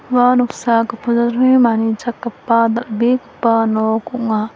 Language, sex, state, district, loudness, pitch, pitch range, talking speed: Garo, female, Meghalaya, West Garo Hills, -16 LUFS, 235 Hz, 225-245 Hz, 105 wpm